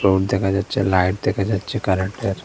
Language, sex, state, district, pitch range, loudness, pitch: Bengali, male, Assam, Hailakandi, 95-105 Hz, -20 LUFS, 95 Hz